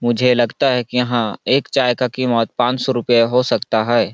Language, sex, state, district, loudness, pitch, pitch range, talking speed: Hindi, male, Chhattisgarh, Balrampur, -17 LUFS, 120 Hz, 120-125 Hz, 205 wpm